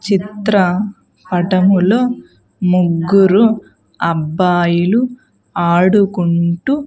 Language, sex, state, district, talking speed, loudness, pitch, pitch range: Telugu, female, Andhra Pradesh, Sri Satya Sai, 45 wpm, -14 LUFS, 190 Hz, 175-210 Hz